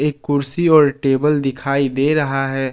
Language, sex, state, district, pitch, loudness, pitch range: Hindi, male, Jharkhand, Ranchi, 140 Hz, -17 LUFS, 135-150 Hz